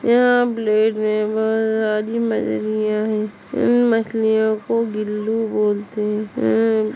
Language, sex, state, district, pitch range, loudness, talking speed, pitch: Hindi, female, Uttar Pradesh, Etah, 210-225 Hz, -19 LUFS, 110 wpm, 215 Hz